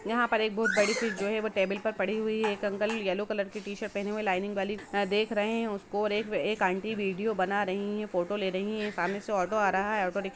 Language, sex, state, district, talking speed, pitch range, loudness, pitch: Hindi, female, Jharkhand, Jamtara, 270 wpm, 195-215 Hz, -30 LUFS, 205 Hz